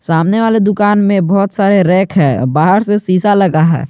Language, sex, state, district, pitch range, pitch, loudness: Hindi, male, Jharkhand, Garhwa, 170-205 Hz, 195 Hz, -11 LUFS